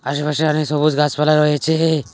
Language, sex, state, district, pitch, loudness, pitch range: Bengali, male, West Bengal, Cooch Behar, 150 Hz, -17 LUFS, 150-155 Hz